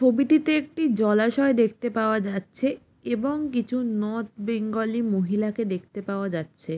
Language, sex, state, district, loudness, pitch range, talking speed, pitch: Bengali, female, West Bengal, Jalpaiguri, -25 LUFS, 205-250 Hz, 125 wpm, 225 Hz